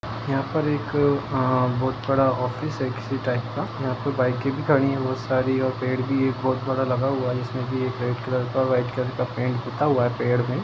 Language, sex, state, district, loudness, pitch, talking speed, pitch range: Hindi, male, Jharkhand, Sahebganj, -24 LUFS, 130 Hz, 225 wpm, 125-135 Hz